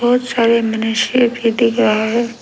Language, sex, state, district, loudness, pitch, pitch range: Hindi, female, Arunachal Pradesh, Lower Dibang Valley, -15 LUFS, 235 Hz, 225-240 Hz